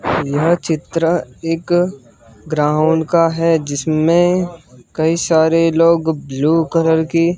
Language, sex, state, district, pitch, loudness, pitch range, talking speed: Hindi, male, Gujarat, Gandhinagar, 165 Hz, -15 LUFS, 155-165 Hz, 105 wpm